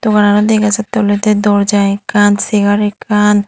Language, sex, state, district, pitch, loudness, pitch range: Chakma, female, Tripura, Unakoti, 210 Hz, -12 LUFS, 205-215 Hz